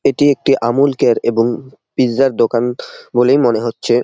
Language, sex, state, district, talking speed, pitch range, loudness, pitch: Bengali, male, West Bengal, Jalpaiguri, 165 wpm, 115-135 Hz, -14 LUFS, 125 Hz